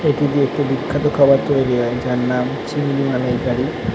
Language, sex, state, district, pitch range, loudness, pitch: Bengali, male, West Bengal, North 24 Parganas, 125-145 Hz, -18 LUFS, 135 Hz